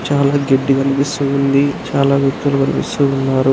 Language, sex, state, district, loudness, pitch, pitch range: Telugu, male, Andhra Pradesh, Anantapur, -15 LUFS, 140 Hz, 135-140 Hz